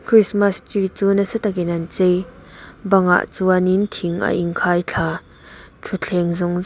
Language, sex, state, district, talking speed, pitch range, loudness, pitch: Mizo, female, Mizoram, Aizawl, 160 wpm, 175-200 Hz, -19 LUFS, 185 Hz